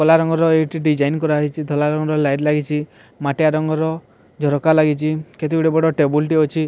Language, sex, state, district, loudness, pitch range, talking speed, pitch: Odia, male, Odisha, Sambalpur, -18 LUFS, 150-160 Hz, 170 wpm, 155 Hz